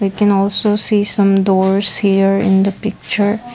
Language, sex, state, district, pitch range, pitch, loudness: English, female, Assam, Kamrup Metropolitan, 195-205 Hz, 200 Hz, -14 LUFS